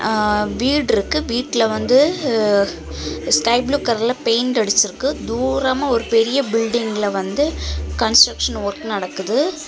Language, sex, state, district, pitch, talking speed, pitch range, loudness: Tamil, female, Tamil Nadu, Kanyakumari, 230 Hz, 110 wpm, 210-260 Hz, -18 LUFS